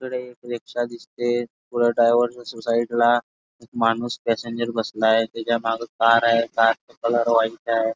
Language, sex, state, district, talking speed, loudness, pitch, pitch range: Marathi, male, Karnataka, Belgaum, 175 wpm, -22 LUFS, 115 Hz, 115-120 Hz